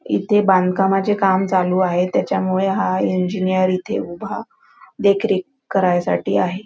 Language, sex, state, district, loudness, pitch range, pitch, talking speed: Marathi, female, Maharashtra, Nagpur, -18 LUFS, 185-195 Hz, 185 Hz, 115 wpm